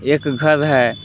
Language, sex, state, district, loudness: Hindi, male, Jharkhand, Palamu, -16 LUFS